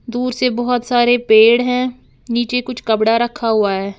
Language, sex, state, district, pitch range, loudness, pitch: Hindi, female, Uttar Pradesh, Lalitpur, 225-250 Hz, -15 LUFS, 240 Hz